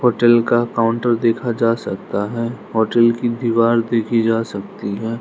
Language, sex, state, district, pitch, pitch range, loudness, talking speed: Hindi, male, Arunachal Pradesh, Lower Dibang Valley, 115 Hz, 115-120 Hz, -18 LUFS, 160 wpm